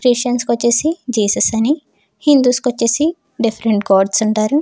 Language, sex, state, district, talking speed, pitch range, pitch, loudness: Telugu, female, Andhra Pradesh, Chittoor, 145 wpm, 220-280 Hz, 240 Hz, -15 LUFS